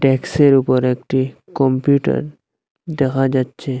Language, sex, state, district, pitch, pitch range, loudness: Bengali, male, Assam, Hailakandi, 135 Hz, 130-140 Hz, -17 LUFS